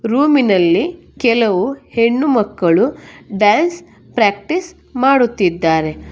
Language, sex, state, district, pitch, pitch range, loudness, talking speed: Kannada, female, Karnataka, Bangalore, 235 Hz, 205-280 Hz, -15 LUFS, 60 wpm